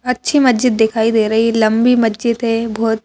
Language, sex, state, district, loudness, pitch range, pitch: Hindi, female, Madhya Pradesh, Bhopal, -14 LUFS, 220-245 Hz, 230 Hz